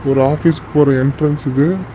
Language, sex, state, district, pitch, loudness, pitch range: Tamil, male, Tamil Nadu, Namakkal, 145 Hz, -15 LUFS, 135-150 Hz